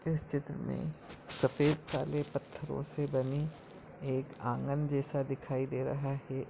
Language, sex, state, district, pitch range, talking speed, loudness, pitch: Hindi, male, Chhattisgarh, Bastar, 135-150 Hz, 140 wpm, -36 LUFS, 140 Hz